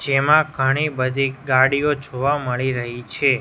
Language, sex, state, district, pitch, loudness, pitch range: Gujarati, male, Gujarat, Gandhinagar, 135 Hz, -19 LUFS, 130-145 Hz